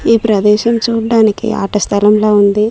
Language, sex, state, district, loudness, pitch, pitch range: Telugu, female, Telangana, Mahabubabad, -12 LUFS, 215 Hz, 210-225 Hz